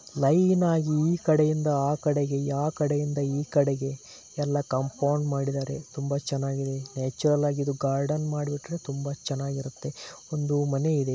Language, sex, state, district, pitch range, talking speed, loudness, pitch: Kannada, male, Karnataka, Belgaum, 140-150 Hz, 130 wpm, -27 LUFS, 145 Hz